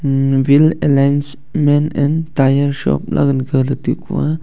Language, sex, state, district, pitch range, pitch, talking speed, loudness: Wancho, male, Arunachal Pradesh, Longding, 135-150 Hz, 140 Hz, 135 wpm, -15 LUFS